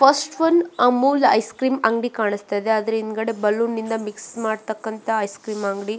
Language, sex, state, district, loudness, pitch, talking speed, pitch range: Kannada, female, Karnataka, Belgaum, -21 LUFS, 220 Hz, 170 wpm, 215-245 Hz